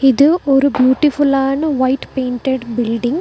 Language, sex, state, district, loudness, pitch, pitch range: Tamil, female, Tamil Nadu, Nilgiris, -15 LUFS, 270 Hz, 255-285 Hz